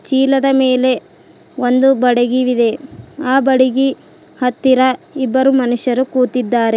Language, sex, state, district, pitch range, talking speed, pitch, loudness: Kannada, female, Karnataka, Bidar, 250-270 Hz, 90 wpm, 255 Hz, -14 LUFS